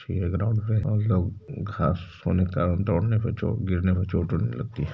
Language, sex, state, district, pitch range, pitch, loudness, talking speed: Hindi, male, Uttar Pradesh, Varanasi, 90-110 Hz, 100 Hz, -26 LUFS, 195 wpm